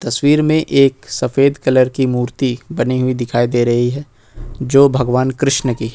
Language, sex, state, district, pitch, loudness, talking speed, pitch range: Hindi, male, Jharkhand, Ranchi, 130 Hz, -15 LUFS, 180 wpm, 120-140 Hz